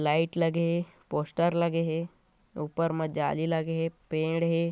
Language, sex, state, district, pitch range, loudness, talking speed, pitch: Hindi, male, Chhattisgarh, Korba, 160-170 Hz, -29 LUFS, 165 wpm, 165 Hz